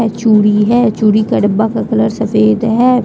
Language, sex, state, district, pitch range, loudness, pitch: Hindi, female, Jharkhand, Deoghar, 215-225 Hz, -12 LUFS, 220 Hz